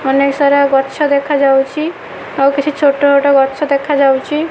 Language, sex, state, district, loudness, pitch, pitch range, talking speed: Odia, female, Odisha, Malkangiri, -12 LUFS, 280 Hz, 275-290 Hz, 135 wpm